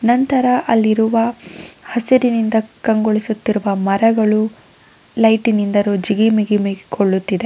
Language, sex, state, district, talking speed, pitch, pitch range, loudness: Kannada, female, Karnataka, Raichur, 70 wpm, 220 Hz, 210-230 Hz, -16 LUFS